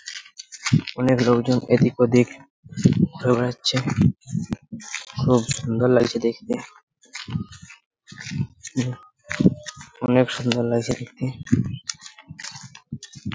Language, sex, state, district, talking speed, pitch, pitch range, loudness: Bengali, male, West Bengal, Purulia, 60 wpm, 125 Hz, 120-130 Hz, -22 LUFS